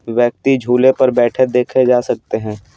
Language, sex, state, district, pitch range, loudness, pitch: Hindi, male, Bihar, Patna, 120-130 Hz, -14 LUFS, 125 Hz